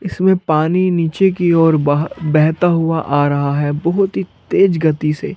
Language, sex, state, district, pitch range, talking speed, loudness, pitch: Hindi, male, Chandigarh, Chandigarh, 150-180 Hz, 180 wpm, -15 LUFS, 160 Hz